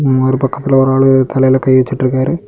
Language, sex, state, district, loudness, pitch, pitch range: Tamil, male, Tamil Nadu, Kanyakumari, -12 LUFS, 130 Hz, 130-135 Hz